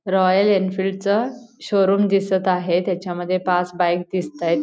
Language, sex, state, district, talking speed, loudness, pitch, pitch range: Marathi, female, Goa, North and South Goa, 140 wpm, -20 LUFS, 190 Hz, 180-195 Hz